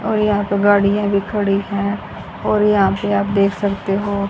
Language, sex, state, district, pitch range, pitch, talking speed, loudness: Hindi, female, Haryana, Jhajjar, 200-205 Hz, 200 Hz, 195 wpm, -17 LUFS